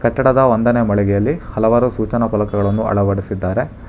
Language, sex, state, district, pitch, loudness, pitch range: Kannada, male, Karnataka, Bangalore, 110 Hz, -16 LUFS, 100-120 Hz